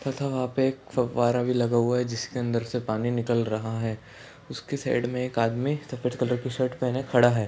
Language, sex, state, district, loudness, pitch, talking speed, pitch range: Hindi, male, Chhattisgarh, Sarguja, -27 LUFS, 125 Hz, 225 wpm, 115-130 Hz